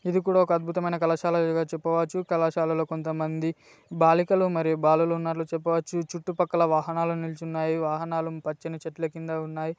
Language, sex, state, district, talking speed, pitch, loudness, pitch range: Telugu, male, Telangana, Nalgonda, 140 wpm, 165 Hz, -26 LUFS, 160-170 Hz